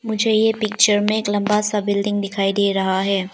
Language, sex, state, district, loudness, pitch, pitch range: Hindi, female, Arunachal Pradesh, Lower Dibang Valley, -18 LUFS, 205 Hz, 200-215 Hz